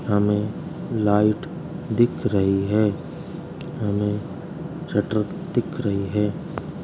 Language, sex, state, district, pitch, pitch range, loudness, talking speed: Hindi, male, Uttar Pradesh, Jalaun, 105 Hz, 105-135 Hz, -24 LUFS, 90 wpm